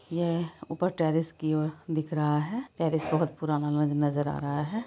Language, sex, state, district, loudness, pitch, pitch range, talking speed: Hindi, female, Bihar, Araria, -29 LUFS, 155 Hz, 150-165 Hz, 185 wpm